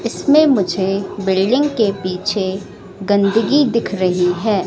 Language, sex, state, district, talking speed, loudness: Hindi, female, Madhya Pradesh, Katni, 115 wpm, -16 LUFS